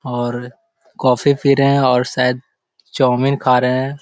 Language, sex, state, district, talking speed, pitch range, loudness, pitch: Hindi, male, Bihar, Jahanabad, 180 wpm, 125-140 Hz, -16 LUFS, 130 Hz